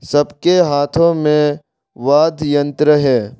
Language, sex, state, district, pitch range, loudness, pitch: Hindi, male, Arunachal Pradesh, Longding, 145-155 Hz, -14 LUFS, 145 Hz